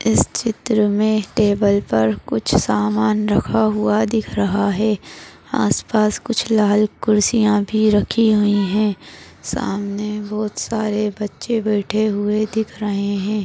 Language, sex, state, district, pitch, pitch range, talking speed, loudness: Hindi, female, Maharashtra, Solapur, 210 Hz, 200-215 Hz, 125 wpm, -18 LUFS